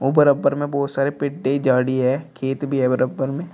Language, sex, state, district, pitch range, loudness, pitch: Hindi, male, Uttar Pradesh, Shamli, 130-145 Hz, -20 LUFS, 140 Hz